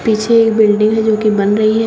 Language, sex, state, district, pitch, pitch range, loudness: Hindi, female, Uttar Pradesh, Shamli, 215 Hz, 215-220 Hz, -12 LUFS